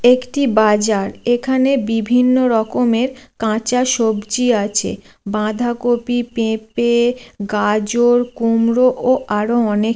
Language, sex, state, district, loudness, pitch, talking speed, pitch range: Bengali, female, West Bengal, Jalpaiguri, -16 LUFS, 235 Hz, 95 wpm, 220-250 Hz